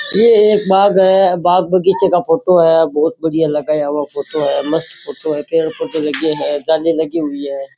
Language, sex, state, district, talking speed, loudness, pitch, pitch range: Rajasthani, male, Rajasthan, Churu, 195 wpm, -14 LUFS, 160 Hz, 150-180 Hz